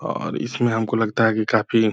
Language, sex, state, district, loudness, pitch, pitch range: Hindi, male, Bihar, Purnia, -21 LUFS, 110 Hz, 110-115 Hz